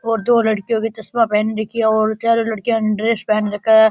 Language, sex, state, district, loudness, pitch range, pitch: Rajasthani, male, Rajasthan, Nagaur, -17 LUFS, 215-230 Hz, 220 Hz